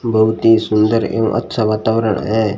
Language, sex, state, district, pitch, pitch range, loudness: Hindi, male, Rajasthan, Bikaner, 110 Hz, 110-115 Hz, -15 LUFS